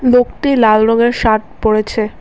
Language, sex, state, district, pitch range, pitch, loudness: Bengali, female, Assam, Kamrup Metropolitan, 215-245 Hz, 225 Hz, -13 LUFS